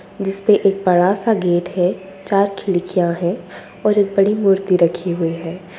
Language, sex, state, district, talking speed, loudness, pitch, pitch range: Hindi, female, Bihar, Sitamarhi, 175 wpm, -17 LUFS, 190 Hz, 175-195 Hz